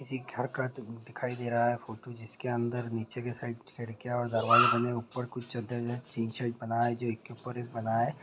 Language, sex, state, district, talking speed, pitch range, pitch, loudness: Hindi, male, Chhattisgarh, Bastar, 235 wpm, 115-125 Hz, 120 Hz, -32 LUFS